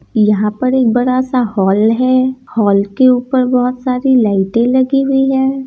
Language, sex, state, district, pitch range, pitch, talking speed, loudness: Hindi, female, Bihar, Gopalganj, 220-260 Hz, 255 Hz, 170 wpm, -13 LUFS